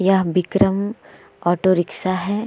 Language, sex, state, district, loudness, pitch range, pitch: Hindi, female, Bihar, Vaishali, -19 LUFS, 180-195 Hz, 190 Hz